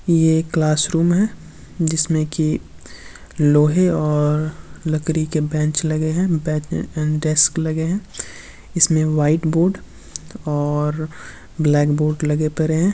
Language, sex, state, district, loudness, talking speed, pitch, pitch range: Hindi, male, Uttar Pradesh, Varanasi, -19 LUFS, 115 wpm, 155 Hz, 155-165 Hz